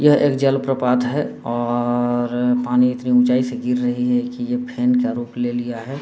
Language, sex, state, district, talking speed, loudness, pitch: Hindi, male, Bihar, Saran, 210 wpm, -19 LUFS, 125 Hz